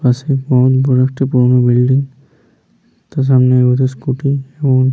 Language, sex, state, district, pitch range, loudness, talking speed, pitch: Bengali, male, West Bengal, Paschim Medinipur, 125-135 Hz, -13 LUFS, 145 wpm, 130 Hz